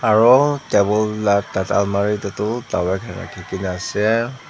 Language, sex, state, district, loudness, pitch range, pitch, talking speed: Nagamese, male, Nagaland, Dimapur, -19 LUFS, 100-115 Hz, 105 Hz, 145 wpm